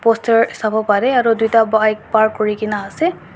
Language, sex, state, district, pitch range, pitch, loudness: Nagamese, female, Nagaland, Dimapur, 215-230 Hz, 220 Hz, -16 LUFS